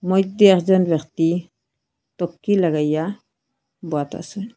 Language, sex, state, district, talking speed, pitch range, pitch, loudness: Bengali, female, Assam, Hailakandi, 90 wpm, 155-190 Hz, 175 Hz, -19 LUFS